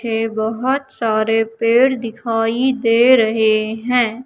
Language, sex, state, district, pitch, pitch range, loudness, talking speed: Hindi, female, Madhya Pradesh, Katni, 230 Hz, 225-250 Hz, -16 LUFS, 115 wpm